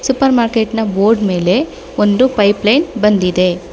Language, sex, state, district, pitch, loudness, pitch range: Kannada, female, Karnataka, Bangalore, 210 Hz, -13 LUFS, 195-245 Hz